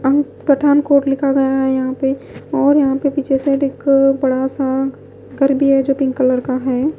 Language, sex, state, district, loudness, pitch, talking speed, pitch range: Hindi, female, Punjab, Pathankot, -16 LUFS, 275 Hz, 205 wpm, 265-280 Hz